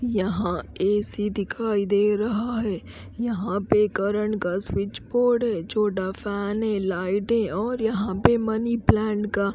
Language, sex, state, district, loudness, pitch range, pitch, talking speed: Hindi, female, Haryana, Rohtak, -24 LUFS, 200-220 Hz, 210 Hz, 145 wpm